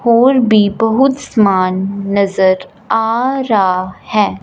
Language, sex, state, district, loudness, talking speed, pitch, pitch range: Hindi, female, Punjab, Fazilka, -13 LUFS, 110 wpm, 210 Hz, 190-235 Hz